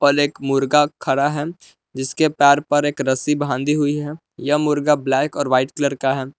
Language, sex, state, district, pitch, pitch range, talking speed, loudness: Hindi, male, Jharkhand, Palamu, 145 Hz, 135-150 Hz, 190 wpm, -19 LUFS